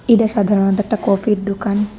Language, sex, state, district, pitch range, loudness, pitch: Bengali, female, Tripura, West Tripura, 200-220 Hz, -16 LUFS, 205 Hz